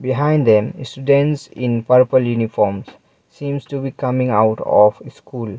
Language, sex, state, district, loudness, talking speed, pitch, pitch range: English, male, Mizoram, Aizawl, -17 LUFS, 140 wpm, 125 Hz, 110-140 Hz